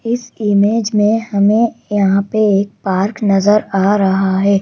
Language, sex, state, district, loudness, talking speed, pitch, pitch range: Hindi, female, Madhya Pradesh, Bhopal, -14 LUFS, 155 wpm, 205 Hz, 195-220 Hz